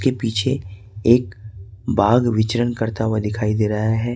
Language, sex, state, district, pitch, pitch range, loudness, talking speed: Hindi, male, Jharkhand, Ranchi, 110 Hz, 105-120 Hz, -19 LUFS, 160 wpm